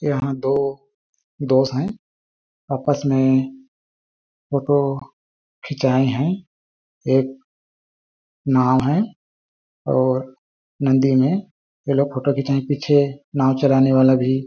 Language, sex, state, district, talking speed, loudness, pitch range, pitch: Hindi, male, Chhattisgarh, Balrampur, 105 wpm, -19 LUFS, 130-140 Hz, 135 Hz